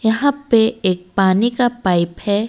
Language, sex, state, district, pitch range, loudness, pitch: Hindi, female, Odisha, Malkangiri, 190-240 Hz, -17 LUFS, 220 Hz